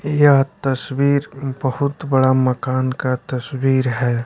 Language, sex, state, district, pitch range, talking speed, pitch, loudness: Hindi, male, Bihar, West Champaran, 130-140 Hz, 115 wpm, 130 Hz, -18 LUFS